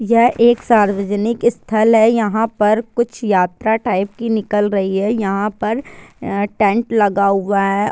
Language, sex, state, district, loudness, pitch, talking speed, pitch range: Hindi, female, Bihar, Sitamarhi, -16 LUFS, 215 Hz, 150 wpm, 200-230 Hz